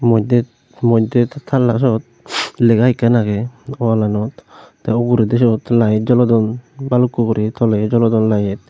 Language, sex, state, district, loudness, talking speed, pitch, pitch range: Chakma, male, Tripura, Unakoti, -15 LUFS, 140 wpm, 115 Hz, 110-125 Hz